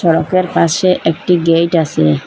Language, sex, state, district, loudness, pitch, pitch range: Bengali, female, Assam, Hailakandi, -13 LUFS, 165 Hz, 165-180 Hz